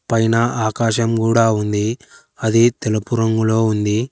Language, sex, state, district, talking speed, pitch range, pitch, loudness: Telugu, male, Telangana, Hyderabad, 115 wpm, 110-115 Hz, 115 Hz, -17 LUFS